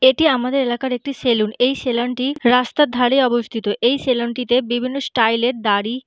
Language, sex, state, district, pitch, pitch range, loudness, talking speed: Bengali, female, West Bengal, North 24 Parganas, 250 Hz, 240-260 Hz, -18 LUFS, 180 wpm